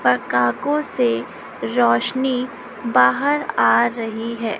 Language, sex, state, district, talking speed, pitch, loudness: Hindi, female, Chhattisgarh, Raipur, 90 wpm, 225 Hz, -19 LUFS